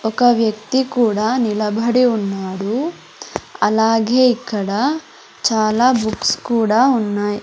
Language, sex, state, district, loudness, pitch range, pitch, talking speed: Telugu, female, Andhra Pradesh, Sri Satya Sai, -17 LUFS, 215-250 Hz, 225 Hz, 90 wpm